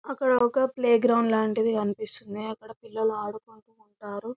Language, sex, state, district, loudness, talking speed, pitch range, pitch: Telugu, female, Telangana, Karimnagar, -26 LUFS, 135 wpm, 215-240 Hz, 220 Hz